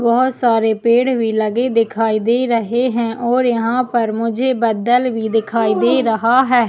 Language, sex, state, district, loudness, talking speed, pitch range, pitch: Hindi, female, Chhattisgarh, Jashpur, -16 LUFS, 150 wpm, 225-250 Hz, 235 Hz